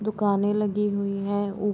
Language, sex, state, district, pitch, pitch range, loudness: Hindi, female, Bihar, Muzaffarpur, 205 Hz, 200-210 Hz, -25 LUFS